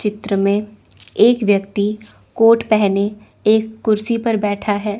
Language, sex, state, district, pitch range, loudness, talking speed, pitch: Hindi, female, Chandigarh, Chandigarh, 205-220 Hz, -17 LUFS, 130 wpm, 210 Hz